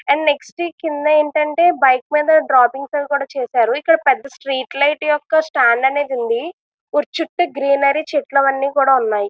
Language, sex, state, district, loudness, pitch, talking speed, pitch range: Telugu, female, Andhra Pradesh, Visakhapatnam, -16 LUFS, 285 Hz, 160 wpm, 270-305 Hz